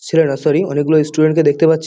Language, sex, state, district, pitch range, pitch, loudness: Bengali, male, West Bengal, Kolkata, 150-160 Hz, 155 Hz, -14 LUFS